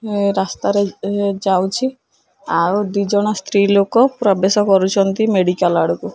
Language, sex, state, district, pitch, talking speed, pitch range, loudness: Odia, female, Odisha, Khordha, 200 Hz, 135 wpm, 190-205 Hz, -16 LUFS